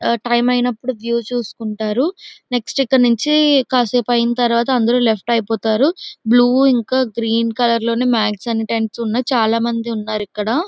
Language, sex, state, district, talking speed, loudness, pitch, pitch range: Telugu, female, Andhra Pradesh, Visakhapatnam, 140 wpm, -17 LUFS, 240 Hz, 230-255 Hz